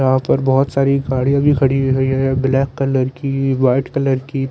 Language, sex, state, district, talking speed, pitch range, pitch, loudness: Hindi, male, Chandigarh, Chandigarh, 185 wpm, 130-135 Hz, 135 Hz, -16 LUFS